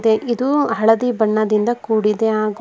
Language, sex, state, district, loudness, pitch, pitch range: Kannada, female, Karnataka, Bangalore, -17 LUFS, 225 Hz, 215-240 Hz